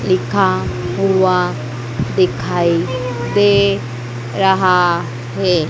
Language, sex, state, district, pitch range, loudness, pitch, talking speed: Hindi, female, Madhya Pradesh, Dhar, 120-180 Hz, -16 LUFS, 125 Hz, 65 wpm